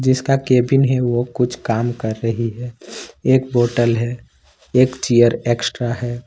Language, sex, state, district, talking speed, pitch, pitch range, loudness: Hindi, male, Jharkhand, Ranchi, 155 wpm, 120 Hz, 120-130 Hz, -18 LUFS